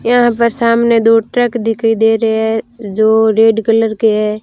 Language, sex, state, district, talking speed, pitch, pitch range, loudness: Hindi, female, Rajasthan, Barmer, 190 wpm, 225 Hz, 220-230 Hz, -12 LUFS